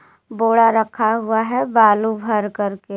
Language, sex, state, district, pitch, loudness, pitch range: Hindi, female, Jharkhand, Garhwa, 220 Hz, -17 LUFS, 210-225 Hz